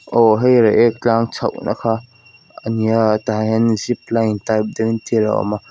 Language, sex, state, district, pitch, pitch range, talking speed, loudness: Mizo, female, Mizoram, Aizawl, 115 Hz, 110-115 Hz, 160 wpm, -17 LUFS